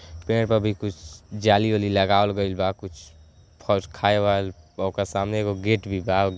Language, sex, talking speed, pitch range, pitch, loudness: Bhojpuri, male, 180 wpm, 95-105 Hz, 100 Hz, -23 LUFS